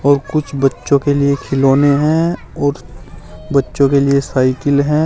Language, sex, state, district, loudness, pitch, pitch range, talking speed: Hindi, male, Uttar Pradesh, Saharanpur, -14 LUFS, 140 Hz, 135-145 Hz, 140 wpm